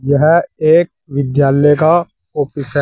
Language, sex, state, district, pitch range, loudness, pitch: Hindi, male, Uttar Pradesh, Saharanpur, 140-160 Hz, -13 LUFS, 145 Hz